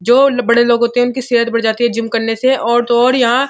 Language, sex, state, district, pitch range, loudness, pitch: Hindi, male, Uttar Pradesh, Muzaffarnagar, 235-250 Hz, -13 LUFS, 240 Hz